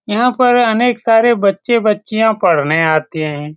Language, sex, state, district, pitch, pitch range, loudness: Hindi, male, Bihar, Saran, 215 Hz, 160-235 Hz, -13 LUFS